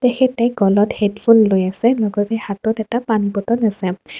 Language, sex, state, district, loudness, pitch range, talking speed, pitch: Assamese, female, Assam, Kamrup Metropolitan, -17 LUFS, 200-235 Hz, 155 wpm, 220 Hz